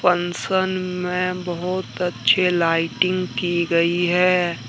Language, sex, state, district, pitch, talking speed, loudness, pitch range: Hindi, male, Jharkhand, Deoghar, 180 Hz, 100 wpm, -20 LUFS, 175-185 Hz